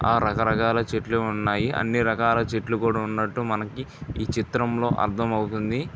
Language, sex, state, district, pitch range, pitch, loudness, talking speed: Telugu, male, Andhra Pradesh, Visakhapatnam, 110-115 Hz, 115 Hz, -24 LUFS, 140 wpm